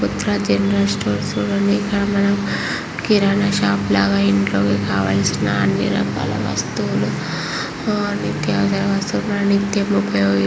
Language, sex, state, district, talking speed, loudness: Telugu, male, Andhra Pradesh, Guntur, 115 wpm, -18 LUFS